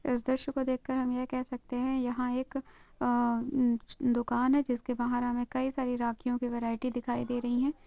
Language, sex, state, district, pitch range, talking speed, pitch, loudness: Hindi, female, Andhra Pradesh, Guntur, 245-260 Hz, 215 wpm, 250 Hz, -32 LUFS